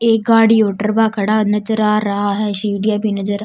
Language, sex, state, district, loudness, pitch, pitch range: Rajasthani, female, Rajasthan, Churu, -15 LUFS, 210 Hz, 205-220 Hz